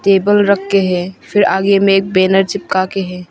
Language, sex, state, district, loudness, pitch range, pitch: Hindi, female, Arunachal Pradesh, Longding, -13 LUFS, 185-200 Hz, 195 Hz